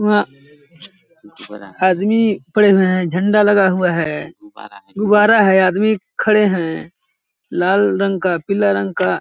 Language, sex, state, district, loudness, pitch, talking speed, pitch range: Hindi, male, Chhattisgarh, Balrampur, -15 LUFS, 190 Hz, 135 wpm, 170-210 Hz